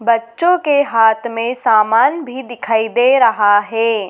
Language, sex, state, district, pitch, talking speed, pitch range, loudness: Hindi, female, Madhya Pradesh, Dhar, 230 Hz, 145 wpm, 220-260 Hz, -14 LUFS